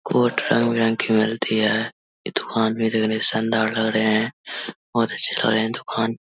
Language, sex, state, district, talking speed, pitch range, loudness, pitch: Hindi, male, Bihar, Vaishali, 185 wpm, 110-115 Hz, -19 LUFS, 110 Hz